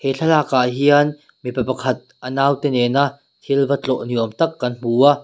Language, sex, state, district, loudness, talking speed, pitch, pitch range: Mizo, male, Mizoram, Aizawl, -18 LUFS, 185 wpm, 135 Hz, 125-140 Hz